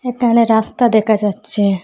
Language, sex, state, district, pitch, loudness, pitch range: Bengali, female, Assam, Hailakandi, 220 Hz, -14 LUFS, 210-235 Hz